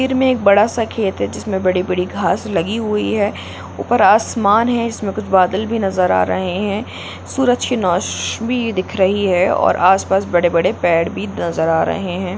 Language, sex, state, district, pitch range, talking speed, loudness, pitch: Hindi, female, Bihar, Gopalganj, 180-220 Hz, 195 wpm, -16 LUFS, 195 Hz